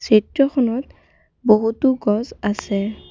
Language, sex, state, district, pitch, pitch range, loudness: Assamese, female, Assam, Kamrup Metropolitan, 225 Hz, 210-255 Hz, -19 LUFS